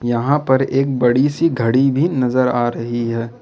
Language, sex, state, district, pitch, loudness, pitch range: Hindi, male, Jharkhand, Ranchi, 125 Hz, -17 LUFS, 120-135 Hz